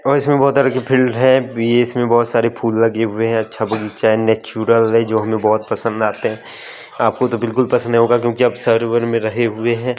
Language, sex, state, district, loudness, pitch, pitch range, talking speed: Hindi, male, Chandigarh, Chandigarh, -16 LUFS, 115 Hz, 110-125 Hz, 230 wpm